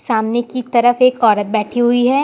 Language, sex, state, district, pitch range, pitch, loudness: Hindi, female, Uttar Pradesh, Lucknow, 220-250 Hz, 240 Hz, -15 LUFS